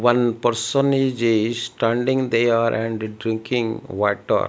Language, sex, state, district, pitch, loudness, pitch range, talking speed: English, male, Odisha, Malkangiri, 115 Hz, -21 LUFS, 115-120 Hz, 135 wpm